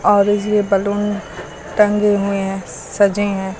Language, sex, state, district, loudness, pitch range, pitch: Hindi, female, Uttar Pradesh, Lucknow, -17 LUFS, 195-205 Hz, 205 Hz